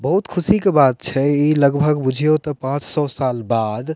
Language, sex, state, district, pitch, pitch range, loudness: Maithili, male, Bihar, Purnia, 145 Hz, 135-155 Hz, -17 LUFS